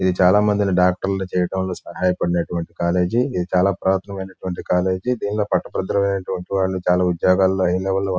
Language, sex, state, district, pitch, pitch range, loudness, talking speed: Telugu, male, Andhra Pradesh, Guntur, 95 Hz, 90-95 Hz, -20 LUFS, 155 wpm